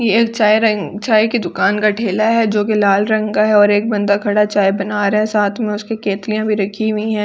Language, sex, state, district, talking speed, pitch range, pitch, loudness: Hindi, female, Delhi, New Delhi, 255 wpm, 205-215 Hz, 210 Hz, -15 LUFS